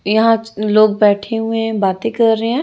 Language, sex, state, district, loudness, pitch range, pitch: Hindi, female, Chhattisgarh, Raipur, -15 LUFS, 210-225 Hz, 225 Hz